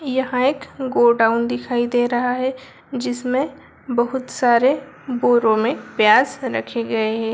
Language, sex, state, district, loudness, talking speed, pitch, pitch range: Hindi, female, Bihar, Begusarai, -19 LUFS, 130 wpm, 245 Hz, 235-260 Hz